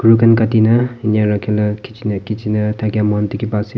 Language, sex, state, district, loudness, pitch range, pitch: Nagamese, male, Nagaland, Kohima, -16 LUFS, 105-115 Hz, 110 Hz